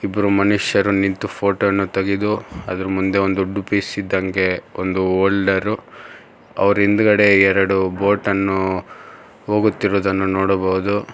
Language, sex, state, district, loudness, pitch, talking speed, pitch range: Kannada, male, Karnataka, Bangalore, -18 LUFS, 100 Hz, 100 wpm, 95-100 Hz